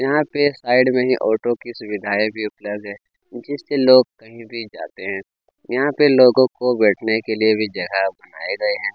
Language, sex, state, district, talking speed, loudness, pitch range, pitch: Hindi, male, Chhattisgarh, Kabirdham, 195 wpm, -18 LUFS, 110-135 Hz, 120 Hz